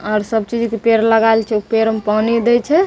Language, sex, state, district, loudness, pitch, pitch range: Maithili, female, Bihar, Begusarai, -15 LUFS, 225 Hz, 220-230 Hz